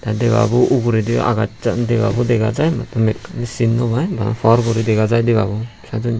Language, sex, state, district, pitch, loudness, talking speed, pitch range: Chakma, male, Tripura, Unakoti, 115 Hz, -17 LUFS, 165 wpm, 110-120 Hz